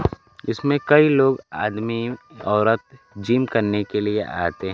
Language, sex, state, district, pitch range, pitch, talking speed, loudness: Hindi, male, Bihar, Kaimur, 105-130 Hz, 115 Hz, 125 wpm, -21 LUFS